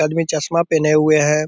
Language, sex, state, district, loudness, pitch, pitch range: Hindi, male, Bihar, Purnia, -16 LUFS, 155 Hz, 155-165 Hz